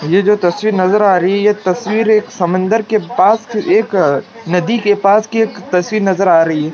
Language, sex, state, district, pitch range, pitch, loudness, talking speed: Hindi, male, Maharashtra, Washim, 185-220 Hz, 205 Hz, -13 LUFS, 205 wpm